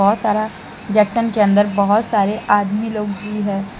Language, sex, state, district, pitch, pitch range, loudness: Hindi, female, Jharkhand, Deoghar, 210 Hz, 200-215 Hz, -17 LUFS